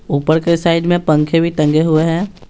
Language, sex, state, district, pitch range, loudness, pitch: Hindi, male, Bihar, Patna, 155-170 Hz, -14 LUFS, 165 Hz